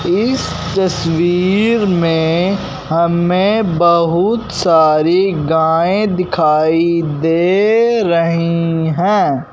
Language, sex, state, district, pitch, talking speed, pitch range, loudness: Hindi, male, Punjab, Fazilka, 170 Hz, 70 wpm, 165-190 Hz, -14 LUFS